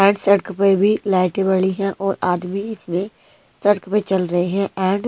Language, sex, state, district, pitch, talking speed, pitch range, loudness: Hindi, female, Himachal Pradesh, Shimla, 195 Hz, 155 wpm, 190-200 Hz, -19 LUFS